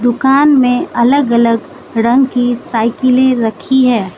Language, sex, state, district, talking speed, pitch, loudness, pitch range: Hindi, female, Manipur, Imphal West, 130 wpm, 245 Hz, -12 LUFS, 235-265 Hz